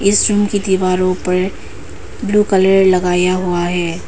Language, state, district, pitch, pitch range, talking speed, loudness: Hindi, Arunachal Pradesh, Papum Pare, 185 Hz, 180-200 Hz, 145 wpm, -14 LUFS